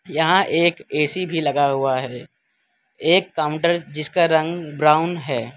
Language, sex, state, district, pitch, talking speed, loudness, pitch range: Hindi, male, Gujarat, Valsad, 160 Hz, 140 wpm, -19 LUFS, 145-170 Hz